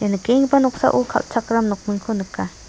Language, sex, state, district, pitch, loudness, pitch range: Garo, female, Meghalaya, South Garo Hills, 205 Hz, -19 LUFS, 185-230 Hz